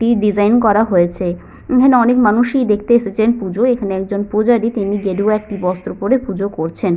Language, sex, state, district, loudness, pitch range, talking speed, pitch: Bengali, female, West Bengal, Paschim Medinipur, -15 LUFS, 195-235 Hz, 170 wpm, 210 Hz